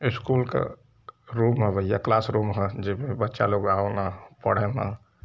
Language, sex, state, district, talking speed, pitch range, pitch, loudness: Hindi, male, Uttar Pradesh, Varanasi, 170 wpm, 100-115 Hz, 105 Hz, -26 LUFS